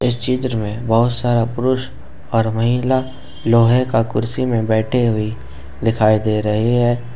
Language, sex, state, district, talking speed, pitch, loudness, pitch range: Hindi, male, Jharkhand, Ranchi, 150 wpm, 115 Hz, -17 LUFS, 110-125 Hz